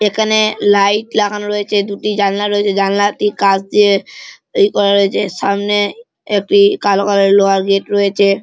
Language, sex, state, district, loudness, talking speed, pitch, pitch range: Bengali, male, West Bengal, Malda, -13 LUFS, 135 wpm, 205 Hz, 200-210 Hz